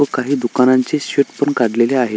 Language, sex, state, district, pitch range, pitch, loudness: Marathi, male, Maharashtra, Sindhudurg, 120-140 Hz, 130 Hz, -16 LUFS